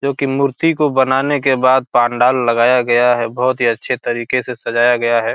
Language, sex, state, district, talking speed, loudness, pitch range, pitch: Hindi, male, Bihar, Gopalganj, 215 wpm, -15 LUFS, 120-135 Hz, 125 Hz